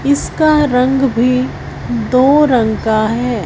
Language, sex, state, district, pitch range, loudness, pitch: Hindi, female, Punjab, Fazilka, 230-275 Hz, -13 LUFS, 250 Hz